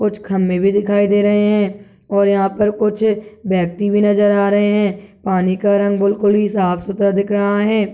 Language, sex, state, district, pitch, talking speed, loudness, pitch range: Hindi, male, Chhattisgarh, Kabirdham, 205 Hz, 205 wpm, -16 LUFS, 200-205 Hz